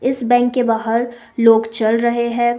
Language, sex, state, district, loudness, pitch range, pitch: Hindi, female, Himachal Pradesh, Shimla, -16 LUFS, 230-240 Hz, 235 Hz